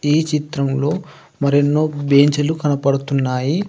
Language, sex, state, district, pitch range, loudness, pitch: Telugu, male, Telangana, Adilabad, 140-155 Hz, -17 LUFS, 145 Hz